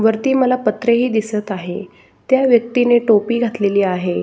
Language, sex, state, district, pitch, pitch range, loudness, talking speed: Marathi, male, Maharashtra, Solapur, 230 Hz, 205-245 Hz, -16 LUFS, 155 wpm